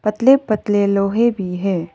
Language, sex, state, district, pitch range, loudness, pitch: Hindi, female, Arunachal Pradesh, Lower Dibang Valley, 195-230 Hz, -17 LUFS, 205 Hz